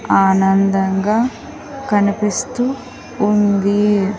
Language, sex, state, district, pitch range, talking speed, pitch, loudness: Telugu, female, Andhra Pradesh, Sri Satya Sai, 195-245 Hz, 45 wpm, 210 Hz, -16 LUFS